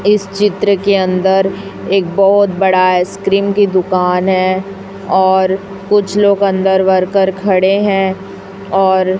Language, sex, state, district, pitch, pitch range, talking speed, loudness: Hindi, female, Chhattisgarh, Raipur, 195 Hz, 190-195 Hz, 125 wpm, -12 LUFS